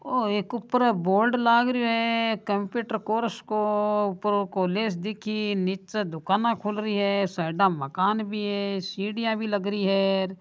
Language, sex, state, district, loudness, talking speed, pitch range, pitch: Marwari, male, Rajasthan, Nagaur, -25 LUFS, 165 wpm, 195-220 Hz, 210 Hz